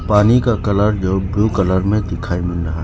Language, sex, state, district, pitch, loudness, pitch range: Hindi, male, Arunachal Pradesh, Lower Dibang Valley, 95 Hz, -16 LUFS, 90-105 Hz